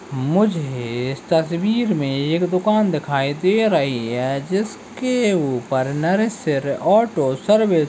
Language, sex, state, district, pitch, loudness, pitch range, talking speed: Hindi, male, Chhattisgarh, Kabirdham, 165 Hz, -19 LUFS, 135-210 Hz, 120 wpm